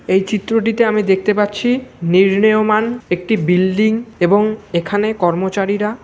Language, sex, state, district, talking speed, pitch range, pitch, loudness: Bengali, male, West Bengal, Malda, 110 wpm, 190-220 Hz, 210 Hz, -15 LUFS